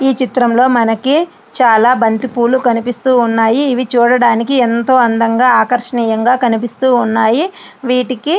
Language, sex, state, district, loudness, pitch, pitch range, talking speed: Telugu, female, Andhra Pradesh, Srikakulam, -12 LUFS, 245 Hz, 230-255 Hz, 105 wpm